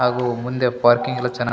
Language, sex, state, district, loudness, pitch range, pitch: Kannada, male, Karnataka, Bellary, -20 LUFS, 120-125 Hz, 125 Hz